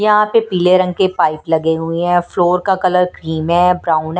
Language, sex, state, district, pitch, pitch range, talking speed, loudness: Hindi, female, Punjab, Kapurthala, 180 Hz, 165-185 Hz, 240 wpm, -14 LUFS